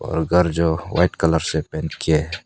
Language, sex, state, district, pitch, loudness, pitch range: Hindi, male, Arunachal Pradesh, Papum Pare, 80 Hz, -20 LUFS, 80-85 Hz